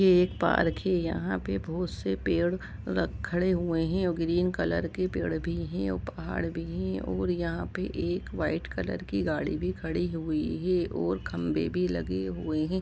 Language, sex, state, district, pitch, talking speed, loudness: Hindi, male, Jharkhand, Jamtara, 155 Hz, 195 wpm, -30 LUFS